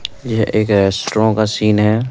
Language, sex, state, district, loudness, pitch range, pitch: Hindi, male, Delhi, New Delhi, -15 LUFS, 105-110 Hz, 110 Hz